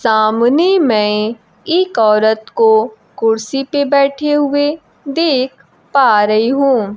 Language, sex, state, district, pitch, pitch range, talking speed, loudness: Hindi, female, Bihar, Kaimur, 250 Hz, 220-285 Hz, 110 wpm, -13 LUFS